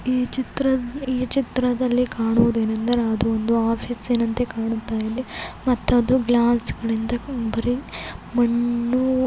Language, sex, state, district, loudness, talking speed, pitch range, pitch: Kannada, female, Karnataka, Belgaum, -22 LUFS, 105 wpm, 230-255 Hz, 240 Hz